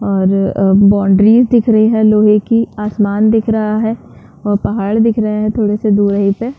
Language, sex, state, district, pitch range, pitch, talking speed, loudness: Hindi, female, Bihar, Saran, 200-220 Hz, 215 Hz, 190 wpm, -12 LUFS